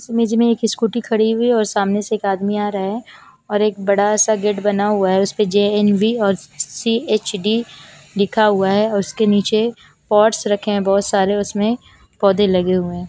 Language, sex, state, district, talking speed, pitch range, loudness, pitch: Hindi, female, Chandigarh, Chandigarh, 205 wpm, 200-220 Hz, -17 LUFS, 205 Hz